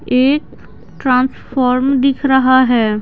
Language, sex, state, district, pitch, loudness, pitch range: Hindi, female, Bihar, Patna, 260 Hz, -14 LUFS, 250-270 Hz